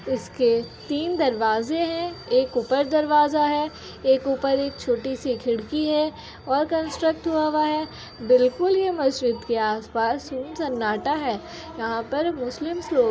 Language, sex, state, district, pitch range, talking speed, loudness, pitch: Hindi, female, Uttar Pradesh, Jyotiba Phule Nagar, 245-315 Hz, 155 wpm, -23 LUFS, 285 Hz